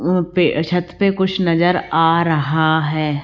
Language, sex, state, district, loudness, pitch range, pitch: Hindi, female, Rajasthan, Jaipur, -17 LUFS, 160-180 Hz, 170 Hz